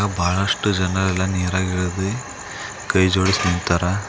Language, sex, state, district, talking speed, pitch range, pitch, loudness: Kannada, male, Karnataka, Bidar, 115 wpm, 90-100 Hz, 95 Hz, -20 LUFS